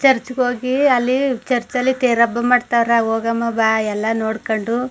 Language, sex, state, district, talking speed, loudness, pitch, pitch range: Kannada, female, Karnataka, Mysore, 145 wpm, -17 LUFS, 240 Hz, 225-255 Hz